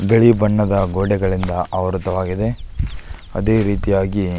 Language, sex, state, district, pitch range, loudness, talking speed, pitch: Kannada, male, Karnataka, Belgaum, 95-105 Hz, -18 LUFS, 95 wpm, 95 Hz